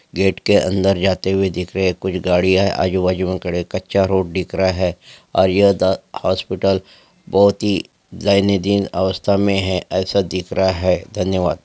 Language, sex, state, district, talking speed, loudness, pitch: Angika, male, Bihar, Madhepura, 175 wpm, -18 LUFS, 95 Hz